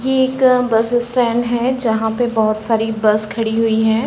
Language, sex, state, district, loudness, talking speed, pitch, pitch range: Hindi, female, Uttar Pradesh, Varanasi, -16 LUFS, 220 wpm, 230 Hz, 225-245 Hz